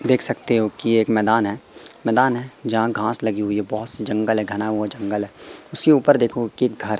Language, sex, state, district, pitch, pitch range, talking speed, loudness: Hindi, female, Madhya Pradesh, Katni, 110 Hz, 105-120 Hz, 230 wpm, -20 LUFS